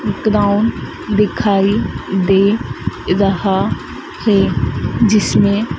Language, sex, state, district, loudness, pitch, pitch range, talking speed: Hindi, female, Madhya Pradesh, Dhar, -15 LUFS, 200 Hz, 195-210 Hz, 75 wpm